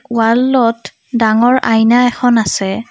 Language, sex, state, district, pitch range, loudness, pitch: Assamese, female, Assam, Kamrup Metropolitan, 225-245 Hz, -12 LUFS, 230 Hz